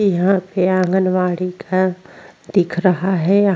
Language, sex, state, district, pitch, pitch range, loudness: Hindi, female, Uttar Pradesh, Jyotiba Phule Nagar, 185 Hz, 180-190 Hz, -17 LUFS